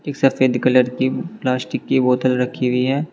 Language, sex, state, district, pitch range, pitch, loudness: Hindi, male, Uttar Pradesh, Saharanpur, 125-135 Hz, 130 Hz, -18 LUFS